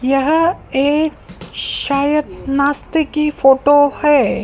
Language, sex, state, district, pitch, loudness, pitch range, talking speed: Hindi, female, Madhya Pradesh, Dhar, 290 Hz, -14 LUFS, 275-300 Hz, 95 wpm